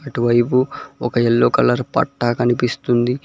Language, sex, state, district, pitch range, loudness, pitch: Telugu, male, Telangana, Mahabubabad, 120-125 Hz, -18 LUFS, 120 Hz